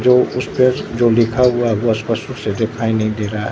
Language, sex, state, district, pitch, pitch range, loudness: Hindi, male, Bihar, Katihar, 115 Hz, 110-125 Hz, -17 LUFS